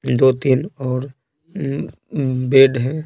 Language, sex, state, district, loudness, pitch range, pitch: Hindi, male, Bihar, Patna, -18 LUFS, 130-140 Hz, 135 Hz